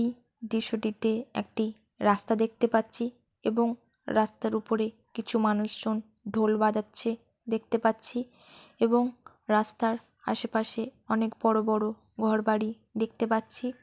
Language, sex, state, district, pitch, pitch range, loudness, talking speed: Bengali, female, West Bengal, Jalpaiguri, 225 Hz, 220-230 Hz, -29 LUFS, 110 wpm